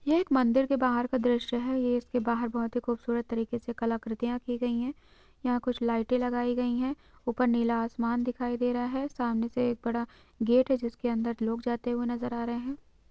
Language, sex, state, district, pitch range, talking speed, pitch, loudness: Hindi, female, West Bengal, Jhargram, 235-250 Hz, 220 wpm, 240 Hz, -30 LUFS